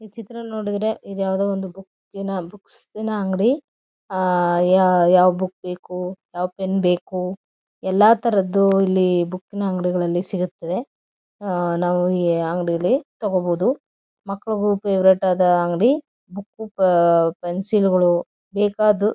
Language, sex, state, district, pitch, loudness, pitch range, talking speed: Kannada, female, Karnataka, Mysore, 190 Hz, -20 LUFS, 180-205 Hz, 120 wpm